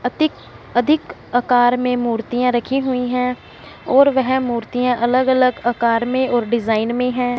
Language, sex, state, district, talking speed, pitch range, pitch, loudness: Hindi, female, Punjab, Fazilka, 155 wpm, 240-255 Hz, 245 Hz, -18 LUFS